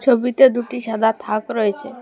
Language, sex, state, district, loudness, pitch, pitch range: Bengali, female, Assam, Hailakandi, -18 LUFS, 240 Hz, 220-255 Hz